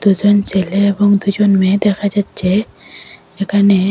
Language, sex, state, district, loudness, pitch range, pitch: Bengali, female, Assam, Hailakandi, -14 LUFS, 195-205 Hz, 200 Hz